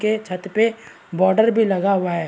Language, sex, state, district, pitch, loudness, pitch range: Hindi, male, Chhattisgarh, Raigarh, 195 Hz, -19 LUFS, 185-220 Hz